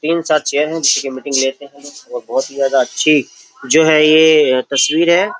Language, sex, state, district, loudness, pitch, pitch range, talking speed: Hindi, male, Uttar Pradesh, Jyotiba Phule Nagar, -13 LUFS, 155 Hz, 140-160 Hz, 200 wpm